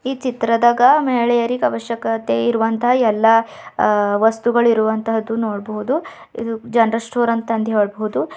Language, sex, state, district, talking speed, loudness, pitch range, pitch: Kannada, female, Karnataka, Bidar, 100 wpm, -17 LUFS, 220-240 Hz, 230 Hz